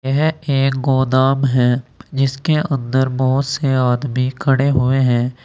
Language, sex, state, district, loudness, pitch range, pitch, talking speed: Hindi, male, Uttar Pradesh, Saharanpur, -17 LUFS, 130-135 Hz, 135 Hz, 130 wpm